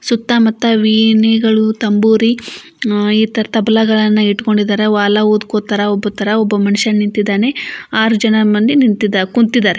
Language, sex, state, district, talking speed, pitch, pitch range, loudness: Kannada, female, Karnataka, Belgaum, 125 wpm, 220 Hz, 210-225 Hz, -13 LUFS